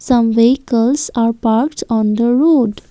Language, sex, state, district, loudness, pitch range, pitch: English, female, Assam, Kamrup Metropolitan, -14 LUFS, 230-260 Hz, 235 Hz